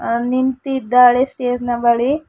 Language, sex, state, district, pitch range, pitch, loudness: Kannada, female, Karnataka, Bidar, 240-265 Hz, 250 Hz, -16 LUFS